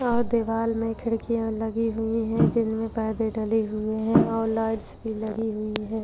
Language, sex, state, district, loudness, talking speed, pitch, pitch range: Hindi, female, Maharashtra, Chandrapur, -26 LUFS, 190 wpm, 225 Hz, 220-225 Hz